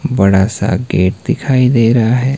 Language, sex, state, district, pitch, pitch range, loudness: Hindi, male, Himachal Pradesh, Shimla, 120 Hz, 100-130 Hz, -13 LUFS